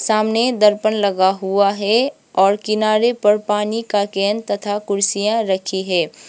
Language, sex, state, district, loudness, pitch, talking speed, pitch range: Hindi, female, Sikkim, Gangtok, -17 LUFS, 210 Hz, 145 wpm, 200-215 Hz